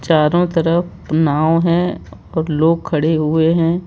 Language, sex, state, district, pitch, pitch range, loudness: Hindi, male, Madhya Pradesh, Bhopal, 165 Hz, 155-170 Hz, -16 LUFS